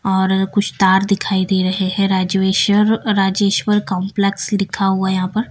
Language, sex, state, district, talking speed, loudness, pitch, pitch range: Hindi, female, Bihar, Patna, 165 wpm, -16 LUFS, 195 Hz, 190-205 Hz